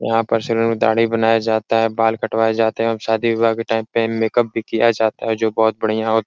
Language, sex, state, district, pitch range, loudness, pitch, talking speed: Hindi, male, Bihar, Jahanabad, 110-115 Hz, -18 LUFS, 115 Hz, 275 wpm